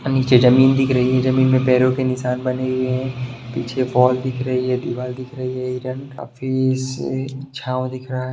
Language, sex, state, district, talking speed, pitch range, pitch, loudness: Hindi, male, Bihar, Sitamarhi, 210 wpm, 125-130 Hz, 130 Hz, -19 LUFS